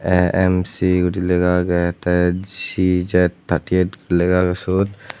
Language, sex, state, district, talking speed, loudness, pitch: Chakma, male, Tripura, West Tripura, 140 wpm, -18 LUFS, 90 Hz